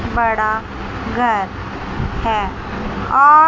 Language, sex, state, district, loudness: Hindi, female, Chandigarh, Chandigarh, -18 LUFS